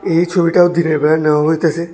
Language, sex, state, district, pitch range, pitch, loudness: Bengali, male, Tripura, West Tripura, 155-170 Hz, 165 Hz, -13 LUFS